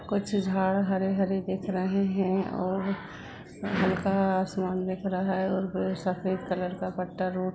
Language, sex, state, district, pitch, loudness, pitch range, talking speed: Hindi, female, Uttar Pradesh, Budaun, 190 Hz, -29 LUFS, 185-195 Hz, 160 wpm